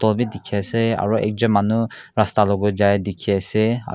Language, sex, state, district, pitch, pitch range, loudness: Nagamese, male, Nagaland, Kohima, 105 Hz, 100-115 Hz, -20 LUFS